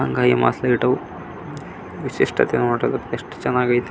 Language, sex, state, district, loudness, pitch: Kannada, male, Karnataka, Belgaum, -20 LUFS, 120 Hz